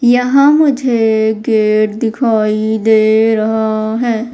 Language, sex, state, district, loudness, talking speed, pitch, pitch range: Hindi, female, Madhya Pradesh, Umaria, -12 LUFS, 95 wpm, 220 Hz, 220-240 Hz